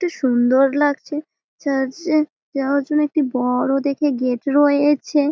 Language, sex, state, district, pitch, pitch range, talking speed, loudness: Bengali, female, West Bengal, Malda, 285 Hz, 270-295 Hz, 125 wpm, -19 LUFS